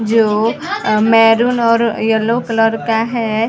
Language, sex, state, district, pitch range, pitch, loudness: Hindi, female, Chhattisgarh, Sarguja, 225-230 Hz, 225 Hz, -14 LUFS